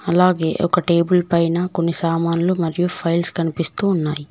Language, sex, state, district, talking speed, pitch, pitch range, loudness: Telugu, female, Telangana, Mahabubabad, 140 wpm, 170 Hz, 165-180 Hz, -18 LUFS